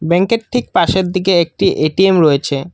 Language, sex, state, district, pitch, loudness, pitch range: Bengali, male, Assam, Kamrup Metropolitan, 180 Hz, -14 LUFS, 160-190 Hz